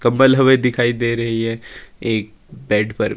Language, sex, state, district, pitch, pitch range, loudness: Hindi, male, Himachal Pradesh, Shimla, 120 Hz, 115-130 Hz, -17 LUFS